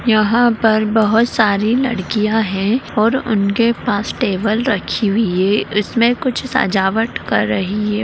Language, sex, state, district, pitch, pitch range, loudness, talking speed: Magahi, female, Bihar, Gaya, 220 Hz, 205-235 Hz, -16 LUFS, 140 wpm